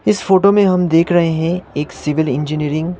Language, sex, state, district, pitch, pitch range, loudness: Hindi, male, Sikkim, Gangtok, 165 Hz, 150-180 Hz, -15 LUFS